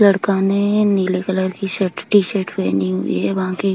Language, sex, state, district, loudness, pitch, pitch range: Hindi, female, Bihar, Kishanganj, -18 LUFS, 190 Hz, 185-200 Hz